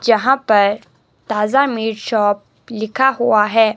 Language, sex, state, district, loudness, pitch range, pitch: Hindi, male, Himachal Pradesh, Shimla, -16 LUFS, 210-240 Hz, 220 Hz